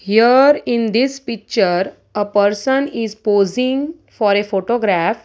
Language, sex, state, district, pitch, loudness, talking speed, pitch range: English, female, Gujarat, Valsad, 225 Hz, -16 LUFS, 125 wpm, 205-250 Hz